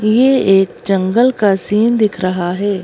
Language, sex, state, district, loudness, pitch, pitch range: Hindi, female, Madhya Pradesh, Bhopal, -13 LUFS, 200 Hz, 190-220 Hz